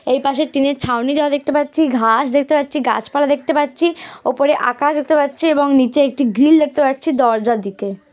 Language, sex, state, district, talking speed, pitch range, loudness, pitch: Bengali, female, West Bengal, Dakshin Dinajpur, 185 wpm, 260-295 Hz, -16 LUFS, 285 Hz